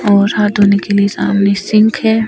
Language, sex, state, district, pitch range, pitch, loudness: Hindi, female, Himachal Pradesh, Shimla, 200-215 Hz, 205 Hz, -12 LUFS